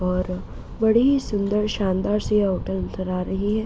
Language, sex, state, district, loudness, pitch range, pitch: Hindi, female, Bihar, East Champaran, -23 LUFS, 185-210 Hz, 200 Hz